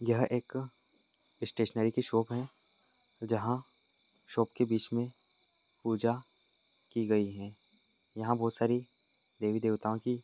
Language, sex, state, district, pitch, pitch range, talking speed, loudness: Hindi, male, Maharashtra, Nagpur, 115 Hz, 110-125 Hz, 130 wpm, -34 LUFS